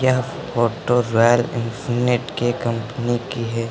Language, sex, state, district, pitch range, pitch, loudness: Hindi, male, Uttar Pradesh, Lucknow, 115-125 Hz, 120 Hz, -20 LUFS